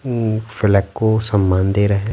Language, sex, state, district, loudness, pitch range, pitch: Hindi, male, Bihar, Patna, -17 LUFS, 100-110 Hz, 105 Hz